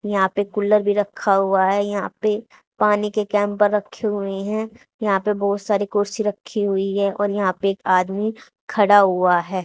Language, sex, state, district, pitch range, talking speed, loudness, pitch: Hindi, female, Haryana, Charkhi Dadri, 195-210 Hz, 195 wpm, -20 LUFS, 205 Hz